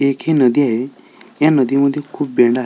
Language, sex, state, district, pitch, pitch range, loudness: Marathi, male, Maharashtra, Solapur, 140 Hz, 130-145 Hz, -16 LUFS